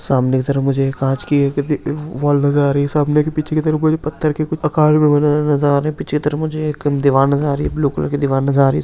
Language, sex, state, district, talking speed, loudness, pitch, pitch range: Garhwali, male, Uttarakhand, Tehri Garhwal, 325 wpm, -16 LUFS, 145 Hz, 140-150 Hz